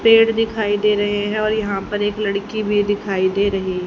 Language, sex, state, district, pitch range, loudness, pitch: Hindi, female, Haryana, Jhajjar, 200-215 Hz, -19 LUFS, 205 Hz